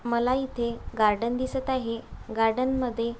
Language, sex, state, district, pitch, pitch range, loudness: Marathi, female, Maharashtra, Aurangabad, 235 Hz, 230-255 Hz, -27 LUFS